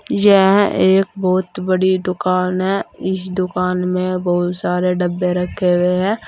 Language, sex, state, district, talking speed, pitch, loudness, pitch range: Hindi, female, Uttar Pradesh, Saharanpur, 145 wpm, 185 Hz, -17 LUFS, 180-190 Hz